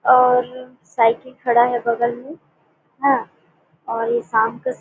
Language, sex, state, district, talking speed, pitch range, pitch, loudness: Surgujia, female, Chhattisgarh, Sarguja, 135 wpm, 235-255 Hz, 245 Hz, -19 LUFS